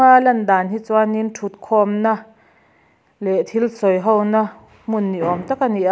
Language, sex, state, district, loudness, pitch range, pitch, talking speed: Mizo, female, Mizoram, Aizawl, -18 LUFS, 200-225 Hz, 220 Hz, 205 wpm